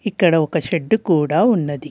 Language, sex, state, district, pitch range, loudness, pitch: Telugu, female, Telangana, Hyderabad, 155-215 Hz, -17 LUFS, 170 Hz